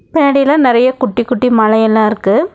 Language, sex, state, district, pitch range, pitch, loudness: Tamil, female, Tamil Nadu, Nilgiris, 220-275 Hz, 250 Hz, -11 LUFS